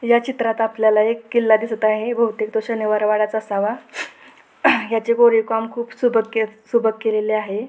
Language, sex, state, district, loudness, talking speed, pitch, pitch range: Marathi, female, Maharashtra, Pune, -19 LUFS, 150 wpm, 225 Hz, 215-235 Hz